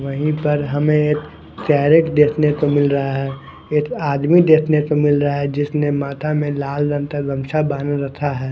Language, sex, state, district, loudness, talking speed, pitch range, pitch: Hindi, male, Haryana, Charkhi Dadri, -17 LUFS, 175 wpm, 140-150 Hz, 145 Hz